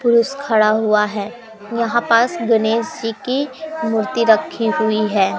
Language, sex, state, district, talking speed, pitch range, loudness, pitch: Hindi, female, Madhya Pradesh, Umaria, 145 wpm, 220-240 Hz, -17 LUFS, 225 Hz